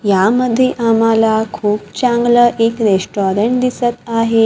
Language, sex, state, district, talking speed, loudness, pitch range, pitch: Marathi, female, Maharashtra, Gondia, 105 wpm, -14 LUFS, 220-240 Hz, 230 Hz